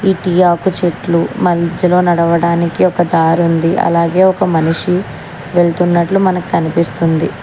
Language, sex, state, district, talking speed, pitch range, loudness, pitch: Telugu, female, Telangana, Hyderabad, 105 wpm, 170-180 Hz, -13 LUFS, 170 Hz